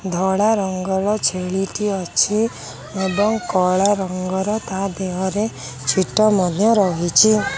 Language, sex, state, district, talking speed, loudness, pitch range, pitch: Odia, female, Odisha, Khordha, 110 wpm, -19 LUFS, 185-210 Hz, 190 Hz